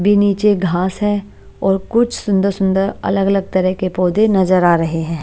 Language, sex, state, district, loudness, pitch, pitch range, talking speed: Hindi, female, Punjab, Pathankot, -16 LUFS, 195 Hz, 185-205 Hz, 185 wpm